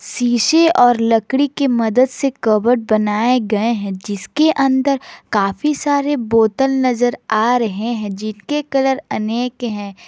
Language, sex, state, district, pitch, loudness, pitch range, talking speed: Hindi, female, Jharkhand, Garhwa, 245 Hz, -16 LUFS, 215-270 Hz, 135 wpm